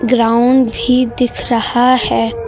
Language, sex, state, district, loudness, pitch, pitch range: Hindi, female, Uttar Pradesh, Lucknow, -13 LUFS, 245 Hz, 230-250 Hz